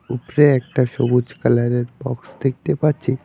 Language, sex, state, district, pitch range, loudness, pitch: Bengali, male, West Bengal, Alipurduar, 120-140 Hz, -19 LUFS, 130 Hz